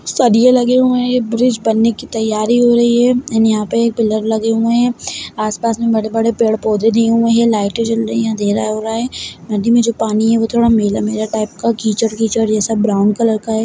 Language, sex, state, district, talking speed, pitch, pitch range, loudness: Hindi, female, Bihar, Begusarai, 220 wpm, 225 Hz, 220-235 Hz, -14 LUFS